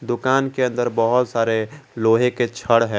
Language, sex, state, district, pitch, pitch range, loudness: Hindi, male, Jharkhand, Garhwa, 120 Hz, 115-125 Hz, -19 LUFS